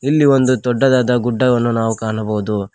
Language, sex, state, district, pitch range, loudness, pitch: Kannada, male, Karnataka, Koppal, 110-130 Hz, -16 LUFS, 120 Hz